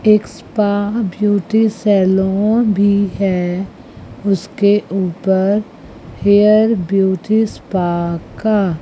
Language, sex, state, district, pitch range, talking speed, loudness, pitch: Hindi, female, Chandigarh, Chandigarh, 190-210 Hz, 80 wpm, -15 LUFS, 200 Hz